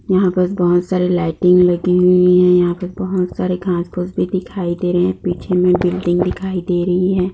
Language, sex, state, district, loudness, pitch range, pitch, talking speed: Hindi, female, Bihar, Bhagalpur, -16 LUFS, 180-185 Hz, 180 Hz, 180 wpm